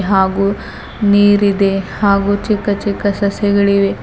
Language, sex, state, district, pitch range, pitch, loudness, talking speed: Kannada, female, Karnataka, Bidar, 195-205 Hz, 200 Hz, -14 LUFS, 90 wpm